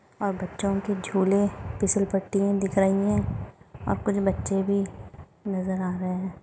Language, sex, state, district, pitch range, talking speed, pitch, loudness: Hindi, female, Goa, North and South Goa, 190-200 Hz, 150 wpm, 195 Hz, -26 LUFS